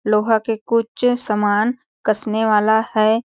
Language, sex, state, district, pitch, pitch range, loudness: Hindi, female, Chhattisgarh, Sarguja, 220 Hz, 215-230 Hz, -18 LUFS